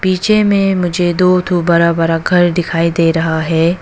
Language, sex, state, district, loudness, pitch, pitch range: Hindi, female, Arunachal Pradesh, Papum Pare, -13 LUFS, 175 Hz, 165-180 Hz